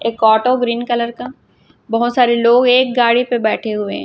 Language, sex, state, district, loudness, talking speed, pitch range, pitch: Hindi, female, Chhattisgarh, Raipur, -14 LUFS, 190 wpm, 230-245 Hz, 235 Hz